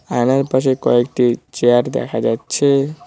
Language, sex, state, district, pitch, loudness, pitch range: Bengali, male, West Bengal, Cooch Behar, 130 Hz, -16 LUFS, 120-135 Hz